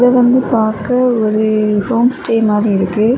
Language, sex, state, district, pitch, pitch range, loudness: Tamil, female, Tamil Nadu, Kanyakumari, 225 Hz, 215-245 Hz, -13 LUFS